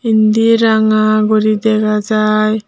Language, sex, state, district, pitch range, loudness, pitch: Chakma, female, Tripura, Unakoti, 215-220 Hz, -12 LUFS, 215 Hz